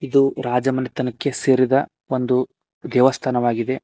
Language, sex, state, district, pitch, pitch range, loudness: Kannada, male, Karnataka, Koppal, 130 Hz, 125-135 Hz, -20 LUFS